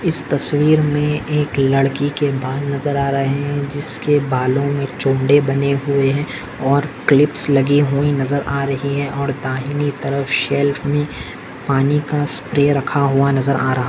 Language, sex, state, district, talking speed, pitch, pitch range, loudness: Hindi, male, Maharashtra, Solapur, 170 wpm, 140 Hz, 135-145 Hz, -17 LUFS